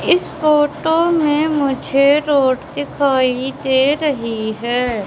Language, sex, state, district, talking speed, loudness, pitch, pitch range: Hindi, female, Madhya Pradesh, Katni, 105 wpm, -16 LUFS, 280 Hz, 255-300 Hz